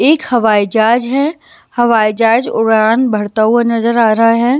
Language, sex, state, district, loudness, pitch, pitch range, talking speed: Hindi, female, Maharashtra, Washim, -12 LUFS, 230 Hz, 220-245 Hz, 170 wpm